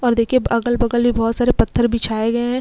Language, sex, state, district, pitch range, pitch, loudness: Hindi, female, Uttar Pradesh, Jyotiba Phule Nagar, 230-240 Hz, 235 Hz, -18 LUFS